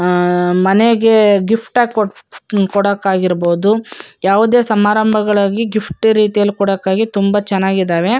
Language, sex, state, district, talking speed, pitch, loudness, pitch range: Kannada, female, Karnataka, Shimoga, 100 wpm, 205 Hz, -13 LUFS, 190-220 Hz